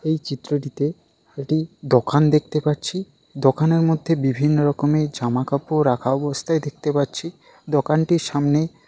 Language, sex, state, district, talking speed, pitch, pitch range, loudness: Bengali, male, West Bengal, Jalpaiguri, 130 wpm, 150 Hz, 140-160 Hz, -21 LUFS